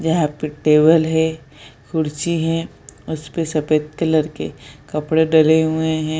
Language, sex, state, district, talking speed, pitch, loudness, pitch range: Hindi, female, Bihar, Jahanabad, 155 wpm, 155 Hz, -18 LUFS, 150-160 Hz